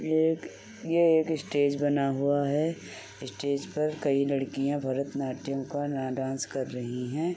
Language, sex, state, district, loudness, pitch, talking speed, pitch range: Hindi, male, Uttar Pradesh, Muzaffarnagar, -29 LUFS, 140 Hz, 155 wpm, 135-150 Hz